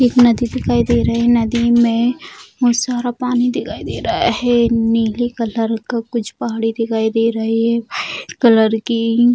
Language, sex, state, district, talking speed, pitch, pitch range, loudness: Hindi, female, Bihar, Jamui, 175 wpm, 235 Hz, 225-240 Hz, -16 LUFS